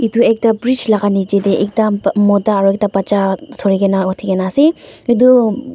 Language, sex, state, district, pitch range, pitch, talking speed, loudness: Nagamese, female, Nagaland, Dimapur, 195-235 Hz, 205 Hz, 165 wpm, -14 LUFS